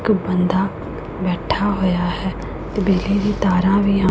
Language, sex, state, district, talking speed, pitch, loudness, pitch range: Punjabi, female, Punjab, Pathankot, 145 wpm, 190 Hz, -19 LUFS, 180-200 Hz